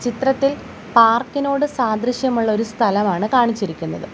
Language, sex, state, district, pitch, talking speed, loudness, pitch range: Malayalam, female, Kerala, Kollam, 235 Hz, 85 wpm, -18 LUFS, 215-265 Hz